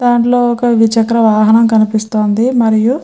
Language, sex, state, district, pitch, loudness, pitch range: Telugu, female, Andhra Pradesh, Chittoor, 230 Hz, -11 LUFS, 220-240 Hz